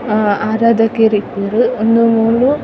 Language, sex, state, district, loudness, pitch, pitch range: Tulu, female, Karnataka, Dakshina Kannada, -13 LUFS, 225 Hz, 215-230 Hz